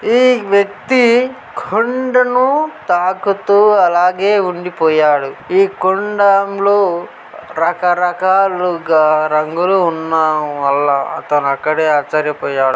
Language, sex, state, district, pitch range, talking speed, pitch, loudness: Telugu, male, Telangana, Karimnagar, 155-205 Hz, 75 wpm, 180 Hz, -14 LUFS